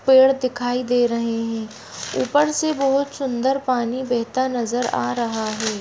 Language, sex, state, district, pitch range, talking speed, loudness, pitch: Hindi, female, Bihar, Jamui, 235-265 Hz, 155 wpm, -21 LUFS, 245 Hz